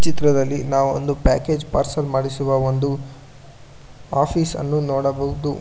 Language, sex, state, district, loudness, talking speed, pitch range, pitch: Kannada, male, Karnataka, Bangalore, -21 LUFS, 105 wpm, 135-150 Hz, 140 Hz